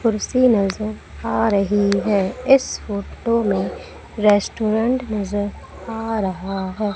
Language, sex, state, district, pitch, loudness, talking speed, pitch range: Hindi, female, Madhya Pradesh, Umaria, 210 Hz, -20 LUFS, 110 wpm, 200-225 Hz